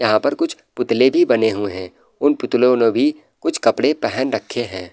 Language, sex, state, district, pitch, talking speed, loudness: Hindi, male, Uttar Pradesh, Muzaffarnagar, 125 Hz, 205 wpm, -18 LUFS